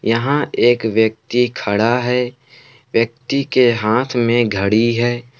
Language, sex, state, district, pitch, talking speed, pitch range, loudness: Hindi, male, Jharkhand, Palamu, 120 Hz, 120 wpm, 115-125 Hz, -16 LUFS